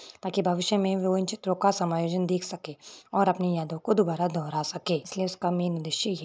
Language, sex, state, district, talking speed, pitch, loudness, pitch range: Hindi, female, Rajasthan, Churu, 200 wpm, 180 Hz, -27 LUFS, 170-190 Hz